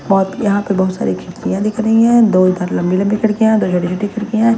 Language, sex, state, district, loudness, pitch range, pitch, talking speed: Hindi, female, Delhi, New Delhi, -15 LUFS, 185-220 Hz, 205 Hz, 235 wpm